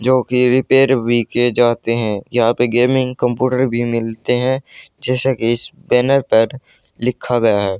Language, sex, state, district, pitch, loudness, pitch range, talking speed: Hindi, male, Haryana, Charkhi Dadri, 125 Hz, -16 LUFS, 115-130 Hz, 155 wpm